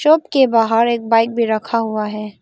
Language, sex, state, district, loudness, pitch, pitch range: Hindi, female, Arunachal Pradesh, Lower Dibang Valley, -16 LUFS, 230 Hz, 220-235 Hz